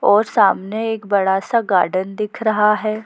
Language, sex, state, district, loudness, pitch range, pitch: Hindi, female, Chhattisgarh, Bilaspur, -17 LUFS, 195-220 Hz, 210 Hz